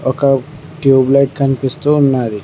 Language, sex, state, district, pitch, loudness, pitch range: Telugu, male, Telangana, Mahabubabad, 135 Hz, -13 LUFS, 130-145 Hz